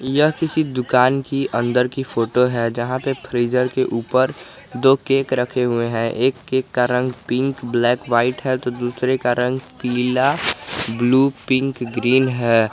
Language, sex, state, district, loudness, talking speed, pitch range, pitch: Hindi, male, Jharkhand, Garhwa, -19 LUFS, 165 wpm, 120-130 Hz, 125 Hz